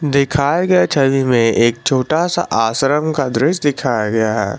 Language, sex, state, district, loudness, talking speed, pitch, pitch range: Hindi, male, Jharkhand, Garhwa, -15 LUFS, 170 wpm, 135 Hz, 115-150 Hz